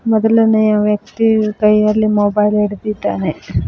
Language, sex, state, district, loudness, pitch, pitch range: Kannada, female, Karnataka, Koppal, -14 LUFS, 215 Hz, 210-220 Hz